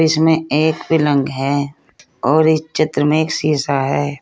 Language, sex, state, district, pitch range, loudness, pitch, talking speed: Hindi, female, Uttar Pradesh, Saharanpur, 140-160 Hz, -16 LUFS, 150 Hz, 155 wpm